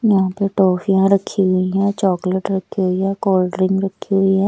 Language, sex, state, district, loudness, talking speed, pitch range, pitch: Hindi, male, Odisha, Nuapada, -17 LUFS, 200 wpm, 185-195 Hz, 195 Hz